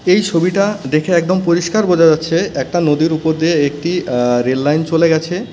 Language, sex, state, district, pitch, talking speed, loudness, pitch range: Bengali, male, West Bengal, Cooch Behar, 165 Hz, 195 wpm, -14 LUFS, 155-180 Hz